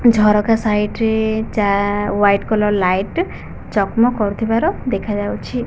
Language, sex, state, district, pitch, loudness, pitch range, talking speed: Odia, female, Odisha, Khordha, 210 Hz, -17 LUFS, 205-225 Hz, 115 wpm